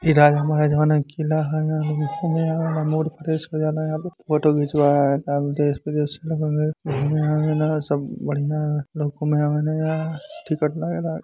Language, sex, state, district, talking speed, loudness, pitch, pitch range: Bhojpuri, male, Uttar Pradesh, Gorakhpur, 170 wpm, -22 LUFS, 150 Hz, 150-155 Hz